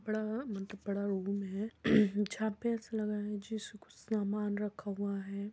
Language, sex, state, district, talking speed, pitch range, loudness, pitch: Hindi, female, Uttar Pradesh, Muzaffarnagar, 185 wpm, 200-215 Hz, -36 LUFS, 210 Hz